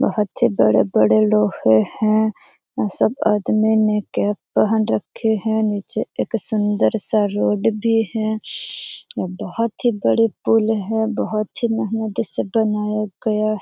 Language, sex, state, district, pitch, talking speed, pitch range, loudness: Hindi, female, Bihar, Jamui, 215 Hz, 135 wpm, 205-220 Hz, -19 LUFS